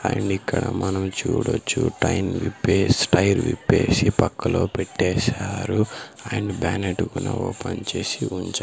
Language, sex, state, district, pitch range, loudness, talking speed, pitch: Telugu, male, Andhra Pradesh, Sri Satya Sai, 100-120 Hz, -23 LUFS, 120 wpm, 110 Hz